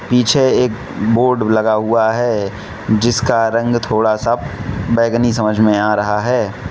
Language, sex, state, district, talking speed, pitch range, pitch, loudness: Hindi, male, Manipur, Imphal West, 145 wpm, 105-120 Hz, 110 Hz, -15 LUFS